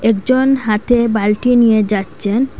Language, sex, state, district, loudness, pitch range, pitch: Bengali, female, Assam, Hailakandi, -14 LUFS, 210-245 Hz, 225 Hz